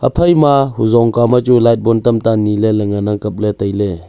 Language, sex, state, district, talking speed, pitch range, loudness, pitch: Wancho, male, Arunachal Pradesh, Longding, 220 wpm, 105-120 Hz, -13 LUFS, 115 Hz